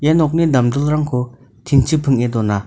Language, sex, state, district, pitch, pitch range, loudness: Garo, male, Meghalaya, North Garo Hills, 130 Hz, 120-150 Hz, -16 LUFS